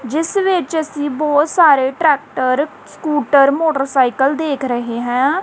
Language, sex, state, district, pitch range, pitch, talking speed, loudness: Punjabi, female, Punjab, Kapurthala, 265-315 Hz, 290 Hz, 120 wpm, -15 LUFS